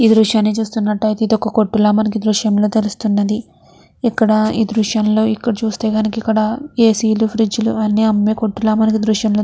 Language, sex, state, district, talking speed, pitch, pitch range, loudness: Telugu, female, Andhra Pradesh, Chittoor, 170 wpm, 220 Hz, 215-220 Hz, -16 LUFS